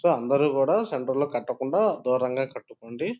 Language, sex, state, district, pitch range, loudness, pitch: Telugu, male, Andhra Pradesh, Guntur, 125-150 Hz, -25 LUFS, 135 Hz